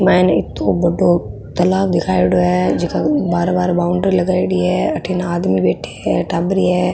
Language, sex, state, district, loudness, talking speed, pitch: Marwari, female, Rajasthan, Nagaur, -16 LUFS, 155 wpm, 175 Hz